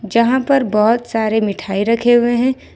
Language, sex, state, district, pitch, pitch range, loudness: Hindi, female, Jharkhand, Ranchi, 235 Hz, 215-245 Hz, -15 LUFS